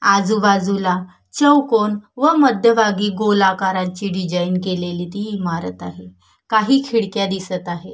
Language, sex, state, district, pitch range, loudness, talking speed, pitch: Marathi, female, Maharashtra, Solapur, 180-220 Hz, -18 LUFS, 105 wpm, 200 Hz